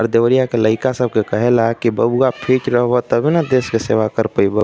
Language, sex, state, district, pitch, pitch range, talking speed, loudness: Bhojpuri, male, Uttar Pradesh, Deoria, 120 Hz, 110-130 Hz, 245 wpm, -16 LUFS